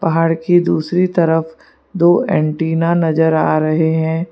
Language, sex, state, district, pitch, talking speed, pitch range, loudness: Hindi, female, Gujarat, Valsad, 165 Hz, 140 wpm, 160-170 Hz, -15 LUFS